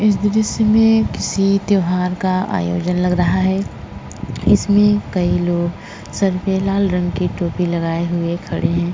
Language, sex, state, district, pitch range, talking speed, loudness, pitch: Hindi, female, Uttar Pradesh, Jyotiba Phule Nagar, 175-200 Hz, 155 wpm, -17 LUFS, 185 Hz